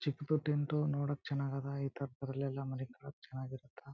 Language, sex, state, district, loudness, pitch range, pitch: Kannada, male, Karnataka, Chamarajanagar, -39 LUFS, 135-145 Hz, 140 Hz